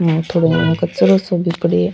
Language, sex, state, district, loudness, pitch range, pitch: Rajasthani, female, Rajasthan, Churu, -15 LUFS, 160-175 Hz, 165 Hz